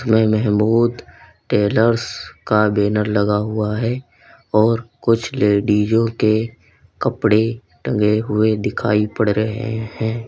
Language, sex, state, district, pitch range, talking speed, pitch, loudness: Hindi, male, Uttar Pradesh, Lalitpur, 105-115 Hz, 110 wpm, 110 Hz, -18 LUFS